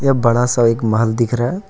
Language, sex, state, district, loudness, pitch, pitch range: Hindi, male, Jharkhand, Ranchi, -16 LUFS, 120 Hz, 115-125 Hz